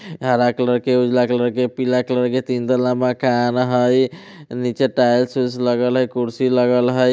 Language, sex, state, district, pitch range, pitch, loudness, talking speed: Hindi, male, Bihar, Vaishali, 125-130 Hz, 125 Hz, -18 LUFS, 185 wpm